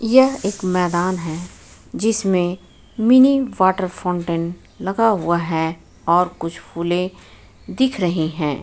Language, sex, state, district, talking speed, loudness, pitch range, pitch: Hindi, female, Jharkhand, Ranchi, 120 wpm, -19 LUFS, 170-215 Hz, 180 Hz